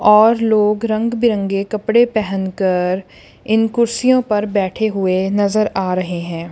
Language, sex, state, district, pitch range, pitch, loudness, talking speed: Hindi, female, Punjab, Kapurthala, 190-225 Hz, 210 Hz, -16 LUFS, 145 wpm